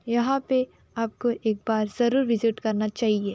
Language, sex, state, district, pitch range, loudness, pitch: Hindi, female, Uttar Pradesh, Jalaun, 215-245 Hz, -25 LUFS, 230 Hz